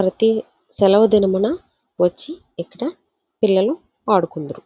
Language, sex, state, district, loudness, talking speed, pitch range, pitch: Telugu, female, Andhra Pradesh, Visakhapatnam, -18 LUFS, 90 wpm, 185-225 Hz, 200 Hz